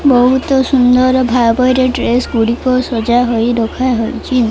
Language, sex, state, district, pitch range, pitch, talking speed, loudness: Odia, female, Odisha, Malkangiri, 235-255 Hz, 250 Hz, 135 wpm, -12 LUFS